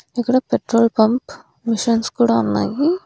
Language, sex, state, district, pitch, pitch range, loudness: Telugu, female, Andhra Pradesh, Annamaya, 230 Hz, 220-250 Hz, -18 LUFS